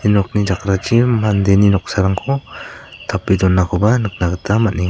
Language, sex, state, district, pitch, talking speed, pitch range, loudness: Garo, male, Meghalaya, South Garo Hills, 100 Hz, 110 wpm, 95-110 Hz, -16 LUFS